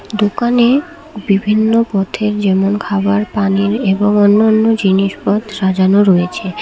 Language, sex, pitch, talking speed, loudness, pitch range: Bengali, female, 205 Hz, 100 wpm, -13 LUFS, 195-220 Hz